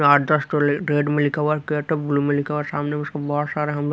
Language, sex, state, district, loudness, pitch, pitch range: Hindi, male, Haryana, Rohtak, -21 LUFS, 150 Hz, 145-150 Hz